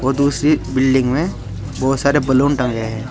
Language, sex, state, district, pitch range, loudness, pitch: Hindi, male, Uttar Pradesh, Saharanpur, 115-140 Hz, -17 LUFS, 130 Hz